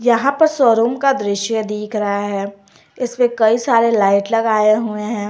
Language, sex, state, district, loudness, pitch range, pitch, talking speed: Hindi, female, Jharkhand, Garhwa, -16 LUFS, 205-235 Hz, 220 Hz, 160 wpm